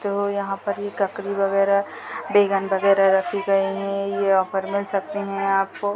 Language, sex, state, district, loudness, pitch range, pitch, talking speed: Hindi, female, Uttar Pradesh, Deoria, -22 LUFS, 195-200 Hz, 195 Hz, 180 wpm